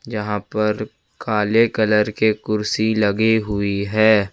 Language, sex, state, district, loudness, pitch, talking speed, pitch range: Hindi, male, Jharkhand, Ranchi, -19 LUFS, 105 Hz, 125 wpm, 105-110 Hz